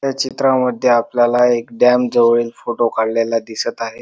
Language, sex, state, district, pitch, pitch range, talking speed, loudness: Marathi, male, Maharashtra, Dhule, 120 Hz, 115-125 Hz, 165 wpm, -16 LUFS